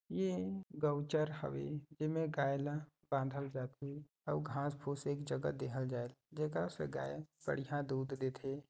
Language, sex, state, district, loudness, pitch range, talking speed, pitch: Chhattisgarhi, male, Chhattisgarh, Sarguja, -40 LUFS, 130-150 Hz, 150 wpm, 140 Hz